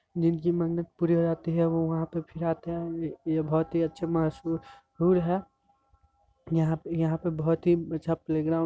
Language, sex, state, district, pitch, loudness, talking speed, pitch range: Hindi, male, Bihar, Vaishali, 165 Hz, -28 LUFS, 200 wpm, 160-170 Hz